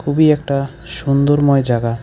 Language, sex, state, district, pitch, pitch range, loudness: Bengali, male, West Bengal, Alipurduar, 140 Hz, 135-150 Hz, -15 LUFS